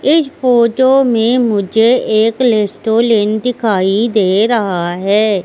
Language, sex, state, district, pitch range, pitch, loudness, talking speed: Hindi, female, Madhya Pradesh, Katni, 205-245 Hz, 225 Hz, -12 LUFS, 110 wpm